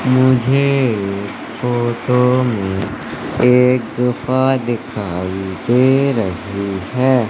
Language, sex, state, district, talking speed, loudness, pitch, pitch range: Hindi, male, Madhya Pradesh, Katni, 80 wpm, -16 LUFS, 120 Hz, 100-130 Hz